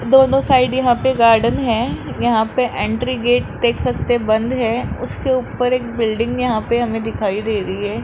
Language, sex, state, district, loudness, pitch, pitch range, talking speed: Hindi, male, Rajasthan, Jaipur, -17 LUFS, 240 Hz, 225-250 Hz, 195 wpm